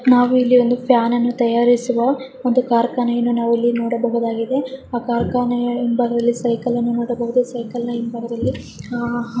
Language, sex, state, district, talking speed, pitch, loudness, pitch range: Kannada, female, Karnataka, Dharwad, 135 wpm, 240 Hz, -18 LUFS, 235-245 Hz